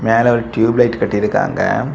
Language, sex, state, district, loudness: Tamil, male, Tamil Nadu, Kanyakumari, -15 LUFS